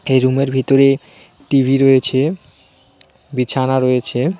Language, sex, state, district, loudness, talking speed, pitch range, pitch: Bengali, male, West Bengal, Cooch Behar, -15 LUFS, 110 wpm, 130-135 Hz, 135 Hz